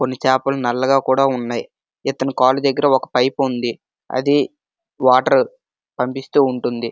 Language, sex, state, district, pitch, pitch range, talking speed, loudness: Telugu, male, Andhra Pradesh, Srikakulam, 135 Hz, 125-140 Hz, 130 wpm, -18 LUFS